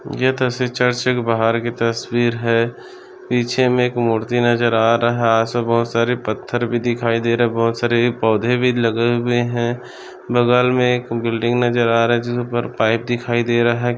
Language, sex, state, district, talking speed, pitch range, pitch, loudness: Hindi, male, Maharashtra, Solapur, 195 wpm, 115-120 Hz, 120 Hz, -18 LUFS